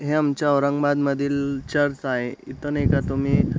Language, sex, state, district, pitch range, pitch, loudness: Marathi, male, Maharashtra, Aurangabad, 140-145 Hz, 140 Hz, -23 LUFS